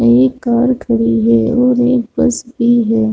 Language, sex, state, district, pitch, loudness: Hindi, female, Chhattisgarh, Raigarh, 235 Hz, -13 LUFS